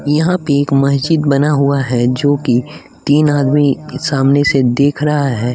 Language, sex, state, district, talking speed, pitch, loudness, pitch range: Hindi, male, Bihar, West Champaran, 175 wpm, 140 Hz, -13 LUFS, 135-145 Hz